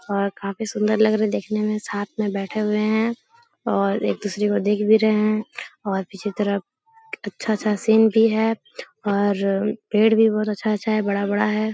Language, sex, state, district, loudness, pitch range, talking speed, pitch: Hindi, female, Bihar, Jahanabad, -21 LUFS, 205-220 Hz, 190 wpm, 215 Hz